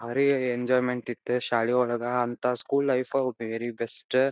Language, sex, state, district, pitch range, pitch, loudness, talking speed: Kannada, male, Karnataka, Dharwad, 120-130 Hz, 125 Hz, -27 LUFS, 125 wpm